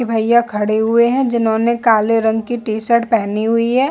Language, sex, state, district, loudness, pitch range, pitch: Hindi, female, Chhattisgarh, Bilaspur, -15 LUFS, 220-235 Hz, 230 Hz